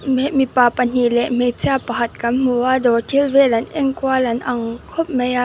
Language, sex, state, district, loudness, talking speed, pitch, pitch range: Mizo, female, Mizoram, Aizawl, -17 LUFS, 210 wpm, 250 Hz, 240-265 Hz